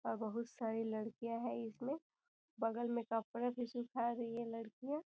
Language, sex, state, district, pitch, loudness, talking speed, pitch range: Hindi, female, Bihar, Gopalganj, 235 Hz, -42 LUFS, 175 wpm, 225-245 Hz